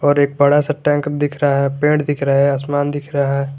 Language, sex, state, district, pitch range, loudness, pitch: Hindi, male, Jharkhand, Garhwa, 140-145 Hz, -16 LUFS, 145 Hz